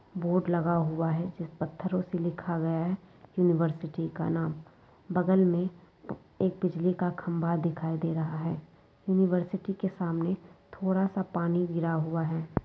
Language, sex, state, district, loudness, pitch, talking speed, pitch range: Hindi, female, West Bengal, Jalpaiguri, -30 LUFS, 170 Hz, 150 wpm, 165-180 Hz